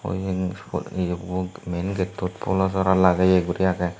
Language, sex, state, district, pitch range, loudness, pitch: Chakma, male, Tripura, Unakoti, 90-95 Hz, -23 LUFS, 95 Hz